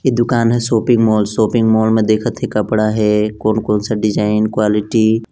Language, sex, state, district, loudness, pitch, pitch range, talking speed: Hindi, male, Chhattisgarh, Balrampur, -15 LUFS, 110 Hz, 105-115 Hz, 215 wpm